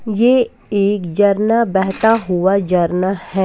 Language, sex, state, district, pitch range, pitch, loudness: Hindi, female, Bihar, West Champaran, 190-220 Hz, 200 Hz, -15 LUFS